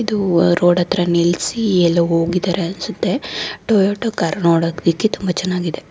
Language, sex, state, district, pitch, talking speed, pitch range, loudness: Kannada, female, Karnataka, Dharwad, 180 Hz, 130 wpm, 170-195 Hz, -17 LUFS